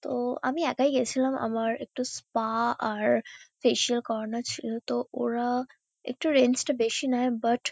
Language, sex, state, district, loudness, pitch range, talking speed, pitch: Bengali, female, West Bengal, Kolkata, -28 LUFS, 230-255 Hz, 155 wpm, 245 Hz